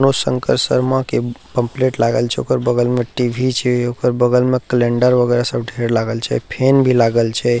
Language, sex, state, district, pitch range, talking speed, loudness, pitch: Maithili, male, Bihar, Purnia, 120-125 Hz, 195 wpm, -16 LUFS, 120 Hz